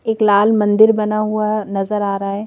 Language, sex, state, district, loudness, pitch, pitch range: Hindi, female, Madhya Pradesh, Bhopal, -15 LUFS, 210 Hz, 200-215 Hz